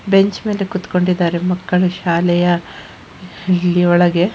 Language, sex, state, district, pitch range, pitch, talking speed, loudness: Kannada, female, Karnataka, Shimoga, 175-185 Hz, 180 Hz, 110 wpm, -16 LUFS